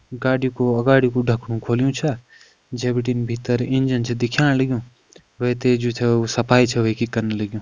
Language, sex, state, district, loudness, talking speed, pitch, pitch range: Kumaoni, male, Uttarakhand, Uttarkashi, -20 LUFS, 190 wpm, 125 Hz, 120-125 Hz